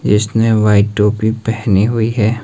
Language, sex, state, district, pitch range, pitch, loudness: Hindi, male, Himachal Pradesh, Shimla, 105-115 Hz, 110 Hz, -14 LUFS